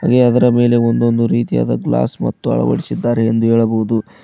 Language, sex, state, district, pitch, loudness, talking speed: Kannada, male, Karnataka, Koppal, 115 Hz, -15 LUFS, 125 wpm